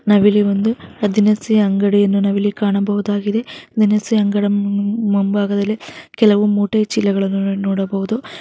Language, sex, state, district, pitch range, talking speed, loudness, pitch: Kannada, female, Karnataka, Mysore, 200-215 Hz, 105 wpm, -16 LUFS, 205 Hz